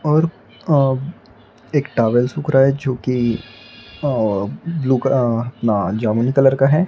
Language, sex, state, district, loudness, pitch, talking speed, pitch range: Hindi, male, Maharashtra, Gondia, -18 LUFS, 130 Hz, 155 wpm, 115-140 Hz